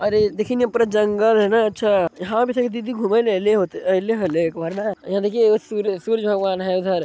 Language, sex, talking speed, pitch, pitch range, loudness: Maithili, male, 240 wpm, 210 Hz, 190-225 Hz, -20 LUFS